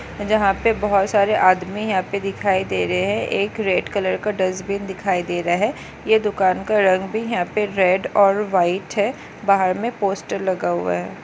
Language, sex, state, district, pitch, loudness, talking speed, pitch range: Hindi, female, Maharashtra, Solapur, 195 Hz, -20 LUFS, 200 wpm, 185-210 Hz